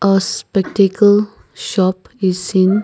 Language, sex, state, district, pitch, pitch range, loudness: English, male, Nagaland, Kohima, 195 Hz, 185-205 Hz, -15 LUFS